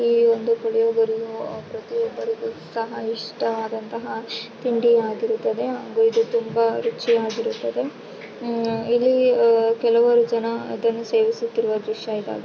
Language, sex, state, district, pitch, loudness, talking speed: Kannada, female, Karnataka, Raichur, 240 Hz, -22 LUFS, 95 wpm